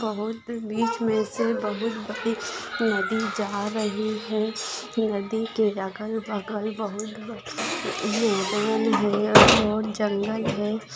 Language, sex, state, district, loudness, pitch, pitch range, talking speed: Hindi, female, Maharashtra, Pune, -25 LUFS, 215 Hz, 210-225 Hz, 115 wpm